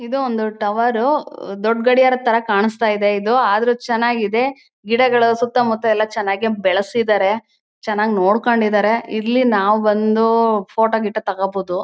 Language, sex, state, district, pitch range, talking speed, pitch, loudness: Kannada, female, Karnataka, Chamarajanagar, 210-235 Hz, 150 wpm, 220 Hz, -17 LUFS